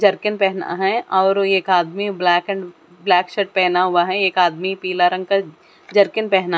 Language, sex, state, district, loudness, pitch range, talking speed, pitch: Hindi, female, Chandigarh, Chandigarh, -18 LUFS, 180-195 Hz, 190 wpm, 190 Hz